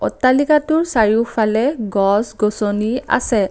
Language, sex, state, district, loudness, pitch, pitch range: Assamese, female, Assam, Kamrup Metropolitan, -17 LUFS, 225 Hz, 210-260 Hz